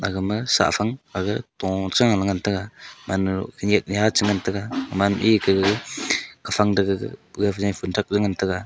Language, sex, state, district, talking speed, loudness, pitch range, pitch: Wancho, male, Arunachal Pradesh, Longding, 165 wpm, -22 LUFS, 95-105 Hz, 100 Hz